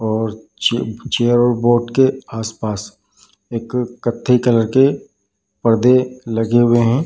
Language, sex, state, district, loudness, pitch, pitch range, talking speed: Hindi, male, Bihar, Darbhanga, -17 LUFS, 120 Hz, 110-125 Hz, 120 wpm